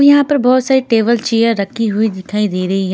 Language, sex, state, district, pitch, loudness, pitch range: Hindi, female, Himachal Pradesh, Shimla, 230 Hz, -14 LUFS, 200-255 Hz